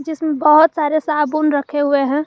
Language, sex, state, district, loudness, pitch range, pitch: Hindi, male, Jharkhand, Garhwa, -15 LUFS, 290-310 Hz, 300 Hz